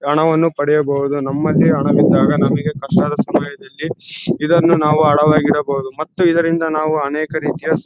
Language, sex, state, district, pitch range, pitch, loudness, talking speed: Kannada, male, Karnataka, Bellary, 145-165 Hz, 155 Hz, -15 LUFS, 120 wpm